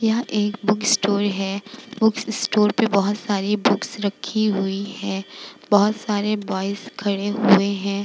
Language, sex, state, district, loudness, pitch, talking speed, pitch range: Hindi, female, Bihar, Vaishali, -21 LUFS, 205 Hz, 150 wpm, 200-215 Hz